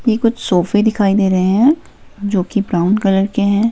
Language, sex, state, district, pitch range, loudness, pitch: Hindi, female, Himachal Pradesh, Shimla, 195-220 Hz, -15 LUFS, 200 Hz